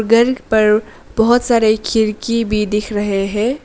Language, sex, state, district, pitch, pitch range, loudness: Hindi, female, Arunachal Pradesh, Lower Dibang Valley, 220 Hz, 210-230 Hz, -15 LUFS